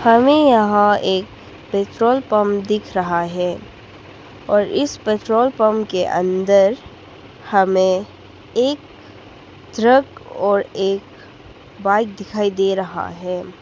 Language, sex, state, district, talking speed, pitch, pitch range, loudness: Hindi, female, Arunachal Pradesh, Papum Pare, 105 wpm, 200 Hz, 185-220 Hz, -17 LUFS